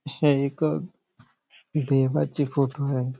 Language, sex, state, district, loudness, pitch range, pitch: Marathi, male, Maharashtra, Nagpur, -25 LUFS, 135-145 Hz, 140 Hz